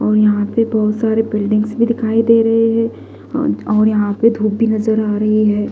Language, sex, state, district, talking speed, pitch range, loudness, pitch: Hindi, female, Maharashtra, Gondia, 210 wpm, 215-225 Hz, -15 LUFS, 215 Hz